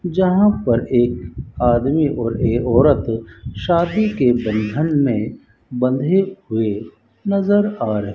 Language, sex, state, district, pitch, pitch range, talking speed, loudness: Hindi, male, Rajasthan, Bikaner, 120 Hz, 115-170 Hz, 125 wpm, -18 LUFS